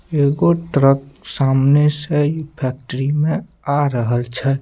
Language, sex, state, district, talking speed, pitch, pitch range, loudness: Maithili, male, Bihar, Samastipur, 130 wpm, 140 Hz, 135-150 Hz, -17 LUFS